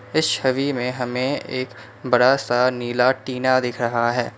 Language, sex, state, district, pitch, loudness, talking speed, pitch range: Hindi, male, Assam, Kamrup Metropolitan, 125 Hz, -21 LUFS, 165 wpm, 120-130 Hz